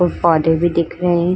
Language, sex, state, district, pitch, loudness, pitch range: Hindi, female, Uttar Pradesh, Budaun, 170 Hz, -16 LUFS, 165-175 Hz